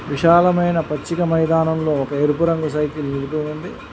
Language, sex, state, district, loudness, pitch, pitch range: Telugu, male, Telangana, Mahabubabad, -18 LUFS, 155 Hz, 150-165 Hz